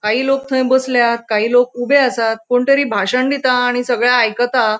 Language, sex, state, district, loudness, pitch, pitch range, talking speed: Konkani, female, Goa, North and South Goa, -15 LUFS, 245 Hz, 235-260 Hz, 210 wpm